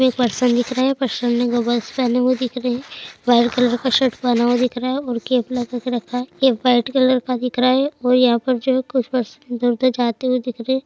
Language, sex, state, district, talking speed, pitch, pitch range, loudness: Hindi, female, Chhattisgarh, Raigarh, 250 wpm, 250 Hz, 245-255 Hz, -19 LUFS